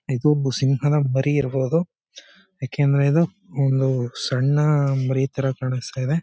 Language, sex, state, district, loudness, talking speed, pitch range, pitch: Kannada, male, Karnataka, Chamarajanagar, -21 LUFS, 125 wpm, 130-150 Hz, 135 Hz